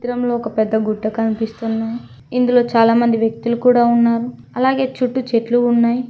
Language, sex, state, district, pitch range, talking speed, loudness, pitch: Telugu, female, Telangana, Mahabubabad, 225-245 Hz, 140 wpm, -17 LUFS, 235 Hz